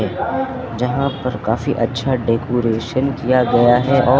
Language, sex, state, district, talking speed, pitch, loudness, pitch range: Hindi, female, Uttar Pradesh, Lucknow, 130 wpm, 125 Hz, -18 LUFS, 115-130 Hz